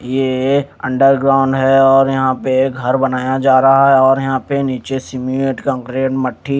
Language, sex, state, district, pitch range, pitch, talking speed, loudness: Hindi, male, Punjab, Kapurthala, 130-135 Hz, 135 Hz, 165 wpm, -14 LUFS